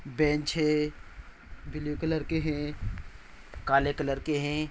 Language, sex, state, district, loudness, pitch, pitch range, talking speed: Hindi, male, Bihar, Araria, -30 LUFS, 150 Hz, 135-150 Hz, 125 wpm